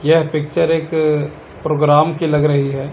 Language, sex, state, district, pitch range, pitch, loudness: Hindi, male, Chandigarh, Chandigarh, 150-160 Hz, 155 Hz, -16 LUFS